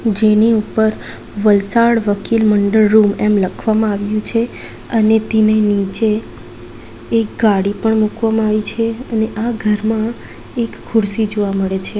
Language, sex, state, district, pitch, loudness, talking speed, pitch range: Gujarati, female, Gujarat, Valsad, 215 Hz, -15 LUFS, 135 wpm, 205-220 Hz